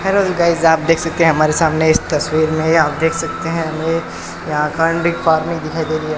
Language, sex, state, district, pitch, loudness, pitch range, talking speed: Hindi, male, Rajasthan, Bikaner, 160 Hz, -16 LUFS, 155-165 Hz, 225 wpm